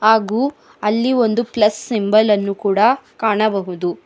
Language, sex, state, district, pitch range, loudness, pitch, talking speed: Kannada, female, Karnataka, Bangalore, 205-235 Hz, -17 LUFS, 215 Hz, 120 wpm